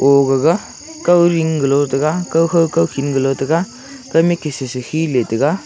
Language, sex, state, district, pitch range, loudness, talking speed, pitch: Wancho, male, Arunachal Pradesh, Longding, 135-170 Hz, -16 LUFS, 150 wpm, 160 Hz